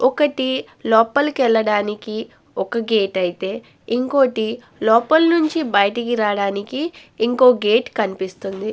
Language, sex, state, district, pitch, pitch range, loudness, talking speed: Telugu, female, Andhra Pradesh, Guntur, 230 Hz, 210-260 Hz, -18 LUFS, 95 wpm